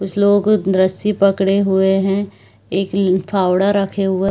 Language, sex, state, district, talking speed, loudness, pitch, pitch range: Hindi, female, Chhattisgarh, Bilaspur, 140 wpm, -16 LUFS, 195 Hz, 190-200 Hz